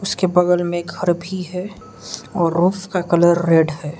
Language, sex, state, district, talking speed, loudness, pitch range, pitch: Hindi, male, Arunachal Pradesh, Lower Dibang Valley, 180 wpm, -18 LUFS, 170-180 Hz, 175 Hz